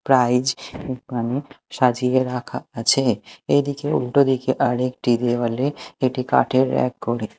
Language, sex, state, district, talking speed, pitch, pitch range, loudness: Bengali, male, Odisha, Malkangiri, 105 wpm, 130 Hz, 125-130 Hz, -21 LUFS